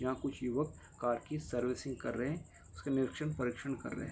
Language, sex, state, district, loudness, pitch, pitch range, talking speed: Hindi, male, Bihar, Kishanganj, -38 LUFS, 130 Hz, 120-140 Hz, 250 wpm